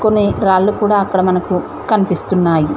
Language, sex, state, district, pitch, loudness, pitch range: Telugu, female, Telangana, Mahabubabad, 190 Hz, -15 LUFS, 180-205 Hz